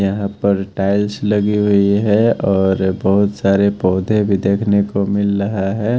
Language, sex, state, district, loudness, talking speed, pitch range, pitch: Hindi, male, Haryana, Jhajjar, -16 LUFS, 160 wpm, 100-105 Hz, 100 Hz